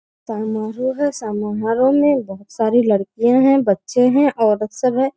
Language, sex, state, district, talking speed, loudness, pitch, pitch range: Hindi, female, Bihar, Bhagalpur, 150 wpm, -17 LUFS, 230 Hz, 215-260 Hz